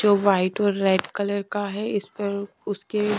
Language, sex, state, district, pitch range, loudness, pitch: Hindi, female, Punjab, Kapurthala, 200-210 Hz, -24 LUFS, 205 Hz